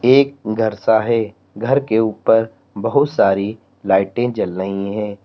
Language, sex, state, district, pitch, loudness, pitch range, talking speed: Hindi, male, Uttar Pradesh, Lalitpur, 110 Hz, -18 LUFS, 100-115 Hz, 150 wpm